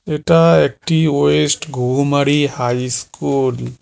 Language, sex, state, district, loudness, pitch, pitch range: Bengali, male, West Bengal, Cooch Behar, -15 LUFS, 140 Hz, 125-150 Hz